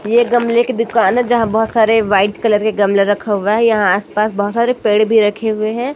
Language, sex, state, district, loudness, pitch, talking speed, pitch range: Hindi, female, Chhattisgarh, Raipur, -14 LUFS, 220 Hz, 240 wpm, 205-230 Hz